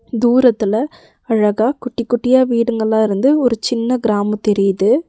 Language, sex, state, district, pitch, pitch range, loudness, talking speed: Tamil, female, Tamil Nadu, Nilgiris, 235 Hz, 215-250 Hz, -15 LUFS, 120 wpm